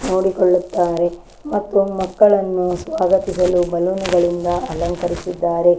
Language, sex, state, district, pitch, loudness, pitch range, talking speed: Kannada, female, Karnataka, Chamarajanagar, 180 Hz, -18 LUFS, 175-190 Hz, 85 wpm